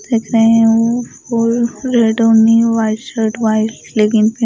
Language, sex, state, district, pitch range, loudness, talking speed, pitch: Hindi, female, Delhi, New Delhi, 220-230 Hz, -13 LUFS, 135 wpm, 225 Hz